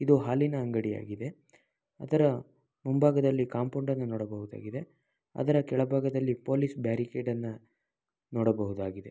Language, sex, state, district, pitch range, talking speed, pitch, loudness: Kannada, male, Karnataka, Mysore, 115-140 Hz, 90 wpm, 125 Hz, -30 LUFS